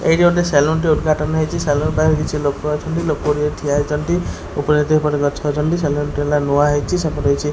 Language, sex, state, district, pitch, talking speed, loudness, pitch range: Odia, male, Odisha, Khordha, 150 Hz, 205 wpm, -17 LUFS, 145-155 Hz